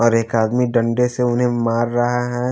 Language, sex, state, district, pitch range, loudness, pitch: Hindi, male, Haryana, Jhajjar, 115-125 Hz, -18 LUFS, 120 Hz